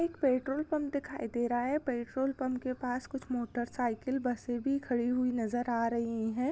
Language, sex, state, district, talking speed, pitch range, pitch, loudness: Hindi, female, Chhattisgarh, Bastar, 205 wpm, 240-270 Hz, 250 Hz, -33 LUFS